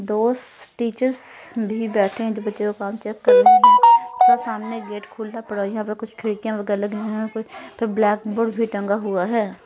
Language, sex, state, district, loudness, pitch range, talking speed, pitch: Hindi, female, Punjab, Fazilka, -19 LUFS, 210-235 Hz, 190 wpm, 220 Hz